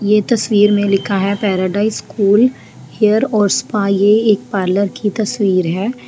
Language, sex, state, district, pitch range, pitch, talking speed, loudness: Hindi, female, Jharkhand, Sahebganj, 200-220 Hz, 205 Hz, 160 wpm, -15 LUFS